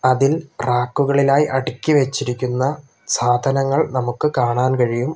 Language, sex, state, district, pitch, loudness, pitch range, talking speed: Malayalam, male, Kerala, Kollam, 130 Hz, -18 LUFS, 125-140 Hz, 95 wpm